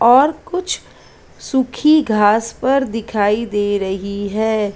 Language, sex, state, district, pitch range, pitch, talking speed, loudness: Hindi, female, Maharashtra, Mumbai Suburban, 205-265 Hz, 225 Hz, 115 wpm, -17 LUFS